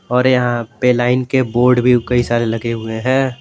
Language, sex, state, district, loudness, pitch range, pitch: Hindi, male, Jharkhand, Garhwa, -15 LUFS, 120-125 Hz, 125 Hz